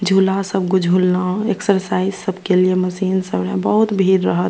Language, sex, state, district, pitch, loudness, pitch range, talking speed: Maithili, female, Bihar, Purnia, 190 Hz, -17 LUFS, 185-195 Hz, 185 wpm